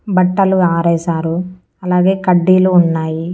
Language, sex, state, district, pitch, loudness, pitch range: Telugu, female, Andhra Pradesh, Annamaya, 180 Hz, -13 LUFS, 170-185 Hz